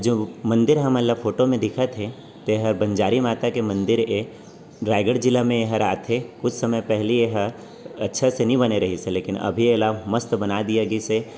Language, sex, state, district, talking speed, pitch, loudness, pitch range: Chhattisgarhi, male, Chhattisgarh, Raigarh, 200 wpm, 115 Hz, -22 LUFS, 110-120 Hz